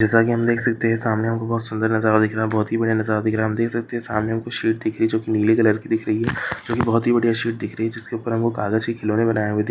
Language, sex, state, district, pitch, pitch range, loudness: Hindi, female, Rajasthan, Churu, 115 Hz, 110-115 Hz, -21 LUFS